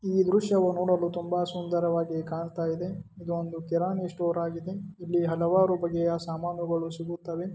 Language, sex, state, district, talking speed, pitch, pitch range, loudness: Kannada, male, Karnataka, Dharwad, 120 wpm, 170 Hz, 170-180 Hz, -28 LUFS